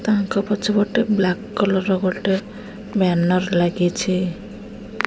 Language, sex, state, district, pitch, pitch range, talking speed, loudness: Odia, female, Odisha, Khordha, 195 Hz, 185-210 Hz, 105 wpm, -20 LUFS